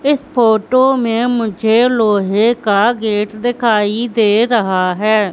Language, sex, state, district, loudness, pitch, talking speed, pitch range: Hindi, female, Madhya Pradesh, Katni, -14 LUFS, 225 Hz, 125 wpm, 210-240 Hz